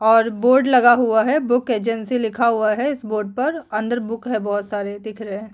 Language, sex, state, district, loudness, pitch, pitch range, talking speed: Hindi, female, Uttarakhand, Tehri Garhwal, -19 LUFS, 225 Hz, 215-245 Hz, 225 wpm